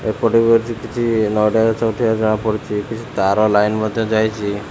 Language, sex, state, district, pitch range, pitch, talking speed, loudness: Odia, male, Odisha, Khordha, 105-115 Hz, 110 Hz, 155 wpm, -17 LUFS